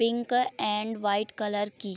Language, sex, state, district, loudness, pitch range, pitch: Hindi, female, Bihar, Begusarai, -28 LUFS, 205-230 Hz, 210 Hz